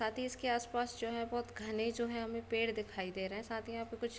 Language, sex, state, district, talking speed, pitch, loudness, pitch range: Hindi, female, Bihar, Muzaffarpur, 315 wpm, 230 Hz, -39 LUFS, 220-235 Hz